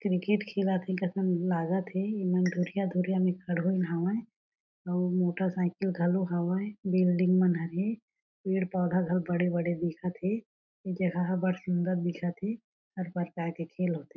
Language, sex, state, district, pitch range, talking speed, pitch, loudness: Chhattisgarhi, female, Chhattisgarh, Jashpur, 175-190 Hz, 150 wpm, 185 Hz, -30 LUFS